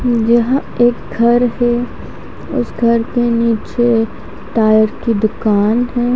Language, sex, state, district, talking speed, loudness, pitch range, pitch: Hindi, female, Haryana, Charkhi Dadri, 115 wpm, -14 LUFS, 225-240 Hz, 235 Hz